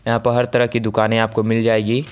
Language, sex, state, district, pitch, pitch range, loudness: Maithili, male, Bihar, Samastipur, 115 Hz, 110-120 Hz, -17 LUFS